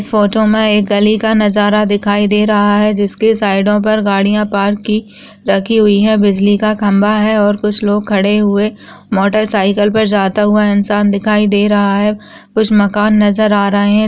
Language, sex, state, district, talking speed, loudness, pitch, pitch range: Hindi, female, Rajasthan, Churu, 185 wpm, -12 LUFS, 210 Hz, 205-215 Hz